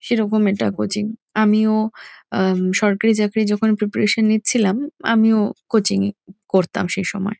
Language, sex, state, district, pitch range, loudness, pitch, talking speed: Bengali, female, West Bengal, Kolkata, 195-220 Hz, -19 LUFS, 210 Hz, 130 wpm